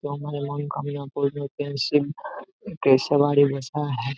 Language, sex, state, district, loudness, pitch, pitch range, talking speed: Hindi, male, Bihar, Begusarai, -24 LUFS, 145 Hz, 140-145 Hz, 85 wpm